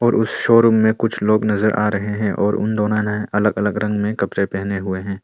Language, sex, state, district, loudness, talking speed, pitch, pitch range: Hindi, male, Arunachal Pradesh, Longding, -18 LUFS, 240 wpm, 105 Hz, 100-110 Hz